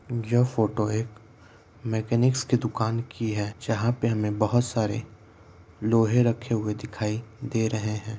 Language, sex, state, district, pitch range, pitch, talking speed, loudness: Hindi, male, Bihar, Jahanabad, 110-115 Hz, 110 Hz, 145 wpm, -26 LUFS